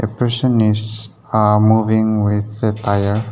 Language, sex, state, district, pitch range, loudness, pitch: English, male, Nagaland, Dimapur, 105-110 Hz, -16 LUFS, 110 Hz